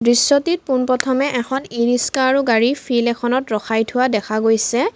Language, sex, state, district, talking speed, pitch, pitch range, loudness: Assamese, female, Assam, Kamrup Metropolitan, 145 wpm, 245 Hz, 235-265 Hz, -17 LUFS